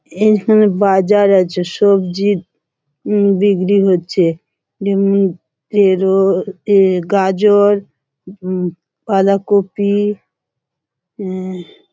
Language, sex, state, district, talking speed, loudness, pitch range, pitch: Bengali, female, West Bengal, Malda, 60 wpm, -14 LUFS, 180-205 Hz, 195 Hz